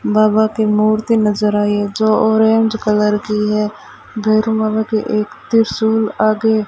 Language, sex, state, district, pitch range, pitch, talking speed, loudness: Hindi, female, Rajasthan, Bikaner, 210-220 Hz, 215 Hz, 160 wpm, -15 LUFS